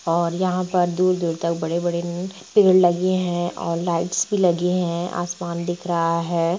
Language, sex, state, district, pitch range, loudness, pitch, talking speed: Hindi, female, Bihar, Gopalganj, 170-180 Hz, -21 LUFS, 175 Hz, 175 wpm